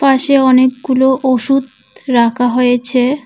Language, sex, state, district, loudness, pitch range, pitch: Bengali, female, West Bengal, Cooch Behar, -12 LUFS, 250-270 Hz, 260 Hz